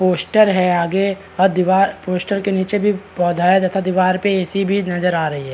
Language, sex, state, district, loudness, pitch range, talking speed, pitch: Hindi, male, Bihar, Araria, -17 LUFS, 180-195 Hz, 225 wpm, 190 Hz